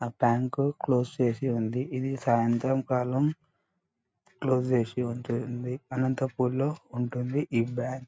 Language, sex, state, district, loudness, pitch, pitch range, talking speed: Telugu, male, Andhra Pradesh, Anantapur, -29 LUFS, 125 Hz, 120-135 Hz, 125 wpm